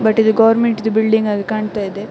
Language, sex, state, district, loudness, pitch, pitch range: Kannada, female, Karnataka, Dakshina Kannada, -15 LUFS, 220 Hz, 210-220 Hz